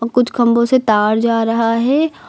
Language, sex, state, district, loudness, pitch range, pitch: Hindi, female, Uttar Pradesh, Lucknow, -14 LUFS, 230-255 Hz, 235 Hz